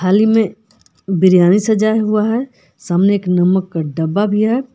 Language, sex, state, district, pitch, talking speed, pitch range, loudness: Hindi, female, Jharkhand, Palamu, 205 Hz, 165 wpm, 180-220 Hz, -14 LUFS